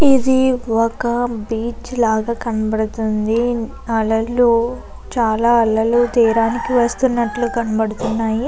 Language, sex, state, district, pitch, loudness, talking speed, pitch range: Telugu, female, Andhra Pradesh, Chittoor, 230 Hz, -17 LUFS, 80 wpm, 225-240 Hz